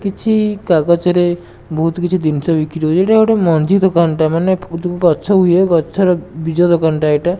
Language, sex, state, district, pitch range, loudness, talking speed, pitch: Odia, male, Odisha, Nuapada, 160-185 Hz, -14 LUFS, 145 wpm, 175 Hz